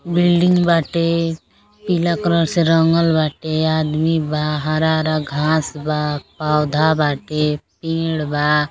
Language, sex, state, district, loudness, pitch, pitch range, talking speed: Bhojpuri, female, Uttar Pradesh, Gorakhpur, -18 LUFS, 160 Hz, 150-165 Hz, 115 wpm